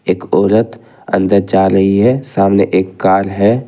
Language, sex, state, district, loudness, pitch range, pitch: Hindi, male, Jharkhand, Ranchi, -12 LUFS, 95-110 Hz, 100 Hz